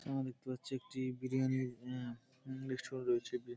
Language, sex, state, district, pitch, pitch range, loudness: Bengali, male, West Bengal, Dakshin Dinajpur, 130 Hz, 125-130 Hz, -40 LUFS